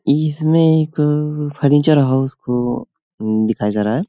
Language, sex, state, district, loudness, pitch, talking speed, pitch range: Hindi, male, Uttar Pradesh, Hamirpur, -17 LUFS, 145 Hz, 130 wpm, 120-155 Hz